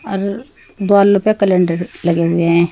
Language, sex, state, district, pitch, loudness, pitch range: Hindi, female, Uttar Pradesh, Saharanpur, 195 Hz, -15 LUFS, 170-200 Hz